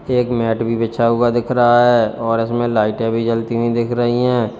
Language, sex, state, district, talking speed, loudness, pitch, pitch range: Hindi, male, Uttar Pradesh, Lalitpur, 220 wpm, -16 LUFS, 115 Hz, 115-120 Hz